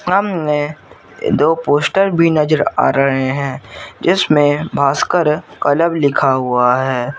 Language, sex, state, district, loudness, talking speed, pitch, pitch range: Hindi, male, Jharkhand, Garhwa, -15 LUFS, 115 wpm, 145 Hz, 135-165 Hz